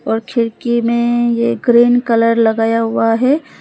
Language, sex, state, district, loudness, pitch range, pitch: Hindi, female, Arunachal Pradesh, Lower Dibang Valley, -14 LUFS, 230-240 Hz, 235 Hz